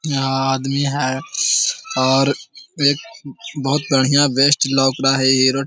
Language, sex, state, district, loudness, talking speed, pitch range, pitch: Hindi, male, Bihar, Jahanabad, -17 LUFS, 150 wpm, 135-145 Hz, 135 Hz